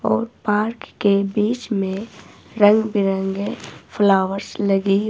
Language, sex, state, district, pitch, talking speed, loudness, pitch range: Hindi, female, Himachal Pradesh, Shimla, 200 Hz, 105 wpm, -20 LUFS, 195-215 Hz